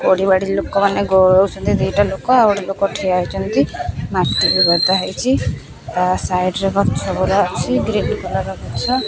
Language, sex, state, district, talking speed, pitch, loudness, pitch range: Odia, female, Odisha, Khordha, 140 wpm, 190 Hz, -16 LUFS, 180-200 Hz